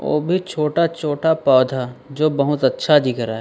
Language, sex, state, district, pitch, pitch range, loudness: Hindi, male, Chhattisgarh, Raipur, 145 Hz, 130-160 Hz, -18 LUFS